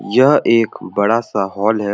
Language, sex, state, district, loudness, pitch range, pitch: Sadri, male, Chhattisgarh, Jashpur, -15 LUFS, 100-115 Hz, 105 Hz